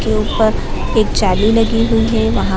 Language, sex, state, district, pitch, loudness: Hindi, female, Bihar, Gaya, 185 Hz, -15 LUFS